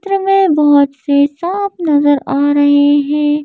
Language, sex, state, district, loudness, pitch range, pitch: Hindi, female, Madhya Pradesh, Bhopal, -12 LUFS, 285-350 Hz, 290 Hz